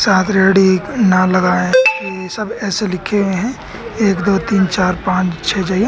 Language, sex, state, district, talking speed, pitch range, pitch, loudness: Hindi, male, Haryana, Jhajjar, 175 wpm, 185-205 Hz, 190 Hz, -15 LUFS